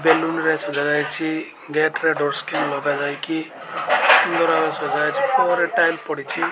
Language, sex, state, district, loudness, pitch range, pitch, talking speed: Odia, male, Odisha, Malkangiri, -20 LUFS, 145-165 Hz, 160 Hz, 130 wpm